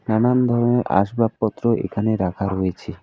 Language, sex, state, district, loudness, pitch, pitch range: Bengali, male, West Bengal, Alipurduar, -20 LUFS, 110 Hz, 95-120 Hz